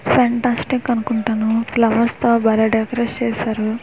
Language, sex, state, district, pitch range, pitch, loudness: Telugu, female, Andhra Pradesh, Manyam, 220-240 Hz, 230 Hz, -18 LUFS